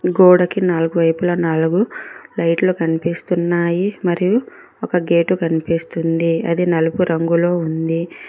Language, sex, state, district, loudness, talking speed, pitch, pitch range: Telugu, female, Telangana, Mahabubabad, -17 LUFS, 100 wpm, 170 Hz, 165-180 Hz